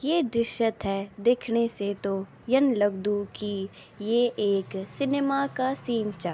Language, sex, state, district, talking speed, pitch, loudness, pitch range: Garhwali, female, Uttarakhand, Tehri Garhwal, 150 wpm, 225 Hz, -27 LUFS, 200-250 Hz